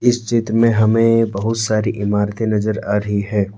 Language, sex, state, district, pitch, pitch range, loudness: Hindi, male, Jharkhand, Deoghar, 110 Hz, 105-115 Hz, -17 LUFS